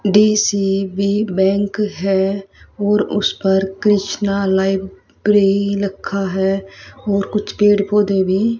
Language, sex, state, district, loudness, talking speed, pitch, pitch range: Hindi, female, Haryana, Rohtak, -17 LUFS, 105 wpm, 200 Hz, 195-205 Hz